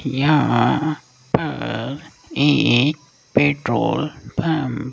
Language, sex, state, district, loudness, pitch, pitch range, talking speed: Hindi, male, Rajasthan, Jaipur, -19 LUFS, 145 Hz, 135-155 Hz, 75 wpm